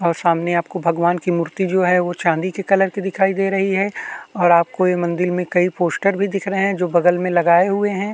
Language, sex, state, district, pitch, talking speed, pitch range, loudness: Hindi, male, Uttarakhand, Tehri Garhwal, 180 Hz, 250 wpm, 175-195 Hz, -18 LUFS